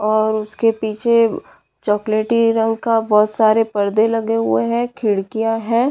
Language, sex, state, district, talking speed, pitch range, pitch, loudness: Hindi, female, Bihar, Madhepura, 140 wpm, 215-230 Hz, 225 Hz, -17 LUFS